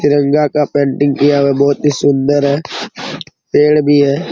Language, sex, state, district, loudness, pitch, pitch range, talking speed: Hindi, male, Bihar, Araria, -12 LUFS, 145 Hz, 140-145 Hz, 165 wpm